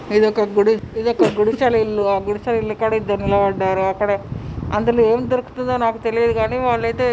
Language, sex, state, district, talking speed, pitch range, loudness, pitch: Telugu, female, Telangana, Nalgonda, 195 wpm, 205-235 Hz, -18 LUFS, 220 Hz